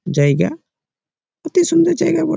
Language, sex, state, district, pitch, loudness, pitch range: Bengali, male, West Bengal, Malda, 330 Hz, -16 LUFS, 210-340 Hz